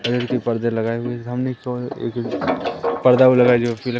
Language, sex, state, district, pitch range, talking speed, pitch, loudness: Hindi, male, Madhya Pradesh, Katni, 120-125 Hz, 165 wpm, 120 Hz, -19 LUFS